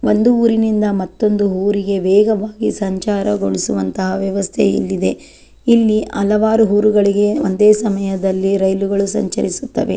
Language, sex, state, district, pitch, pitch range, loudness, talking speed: Kannada, female, Karnataka, Chamarajanagar, 200 Hz, 195-215 Hz, -15 LUFS, 95 wpm